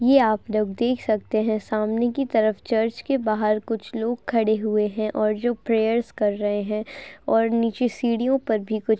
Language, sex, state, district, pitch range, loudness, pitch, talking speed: Hindi, male, Uttar Pradesh, Jalaun, 215-240 Hz, -23 LUFS, 220 Hz, 200 wpm